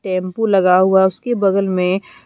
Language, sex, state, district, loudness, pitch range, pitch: Hindi, female, Jharkhand, Deoghar, -15 LUFS, 185-200 Hz, 190 Hz